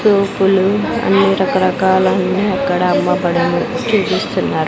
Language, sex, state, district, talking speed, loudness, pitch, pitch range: Telugu, female, Andhra Pradesh, Sri Satya Sai, 90 wpm, -14 LUFS, 190 Hz, 185-200 Hz